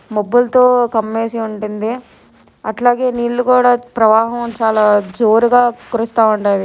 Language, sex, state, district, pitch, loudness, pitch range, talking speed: Telugu, female, Telangana, Nalgonda, 230 Hz, -14 LUFS, 220-245 Hz, 100 wpm